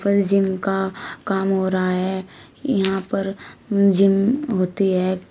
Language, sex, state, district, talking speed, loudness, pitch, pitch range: Hindi, female, Uttar Pradesh, Shamli, 135 wpm, -20 LUFS, 195 Hz, 190-195 Hz